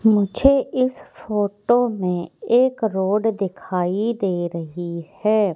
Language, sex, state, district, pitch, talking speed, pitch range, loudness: Hindi, female, Madhya Pradesh, Katni, 205 Hz, 110 wpm, 180-230 Hz, -21 LUFS